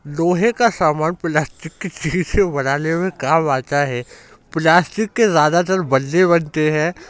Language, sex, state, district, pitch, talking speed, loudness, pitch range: Hindi, male, Uttar Pradesh, Jyotiba Phule Nagar, 165 Hz, 145 wpm, -17 LUFS, 150-180 Hz